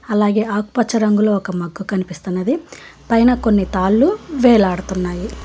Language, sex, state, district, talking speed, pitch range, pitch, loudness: Telugu, female, Telangana, Hyderabad, 120 wpm, 190-235 Hz, 210 Hz, -17 LUFS